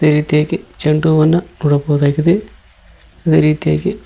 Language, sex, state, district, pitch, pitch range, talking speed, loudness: Kannada, male, Karnataka, Koppal, 155 Hz, 145-160 Hz, 120 wpm, -14 LUFS